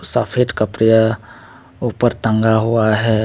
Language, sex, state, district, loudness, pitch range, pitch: Hindi, male, Tripura, West Tripura, -16 LUFS, 110-115 Hz, 110 Hz